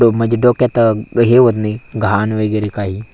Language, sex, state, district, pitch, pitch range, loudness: Marathi, male, Maharashtra, Aurangabad, 110 Hz, 105-115 Hz, -14 LUFS